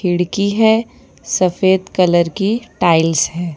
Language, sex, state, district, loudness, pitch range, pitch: Hindi, female, Gujarat, Valsad, -15 LUFS, 170-200 Hz, 185 Hz